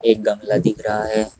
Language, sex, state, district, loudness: Hindi, male, Uttar Pradesh, Shamli, -20 LUFS